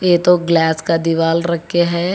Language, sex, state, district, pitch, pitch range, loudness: Hindi, female, Telangana, Hyderabad, 170 Hz, 165-175 Hz, -15 LUFS